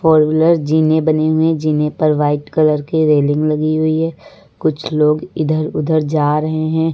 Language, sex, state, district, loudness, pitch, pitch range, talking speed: Hindi, female, Uttar Pradesh, Lucknow, -15 LUFS, 155 Hz, 150-160 Hz, 175 wpm